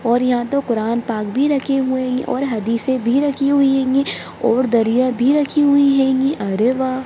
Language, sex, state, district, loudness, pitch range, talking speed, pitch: Hindi, female, Bihar, Darbhanga, -17 LUFS, 240-275 Hz, 205 wpm, 260 Hz